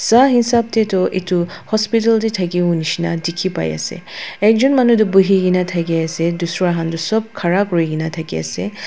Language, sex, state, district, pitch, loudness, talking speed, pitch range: Nagamese, female, Nagaland, Dimapur, 180 Hz, -16 LUFS, 190 wpm, 165-220 Hz